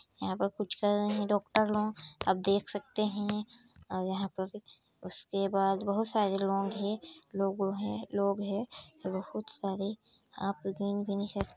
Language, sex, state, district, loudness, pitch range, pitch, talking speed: Hindi, female, Chhattisgarh, Sarguja, -33 LUFS, 195-210 Hz, 200 Hz, 155 wpm